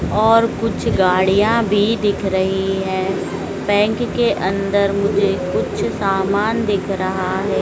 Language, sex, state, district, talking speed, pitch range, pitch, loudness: Hindi, female, Madhya Pradesh, Dhar, 125 wpm, 190-210 Hz, 200 Hz, -17 LUFS